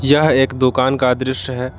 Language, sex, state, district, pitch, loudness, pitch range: Hindi, male, Jharkhand, Garhwa, 130 Hz, -16 LUFS, 125-135 Hz